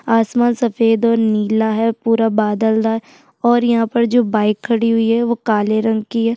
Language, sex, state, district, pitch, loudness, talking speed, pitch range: Hindi, female, Chhattisgarh, Sukma, 230 Hz, -16 LUFS, 205 wpm, 220-235 Hz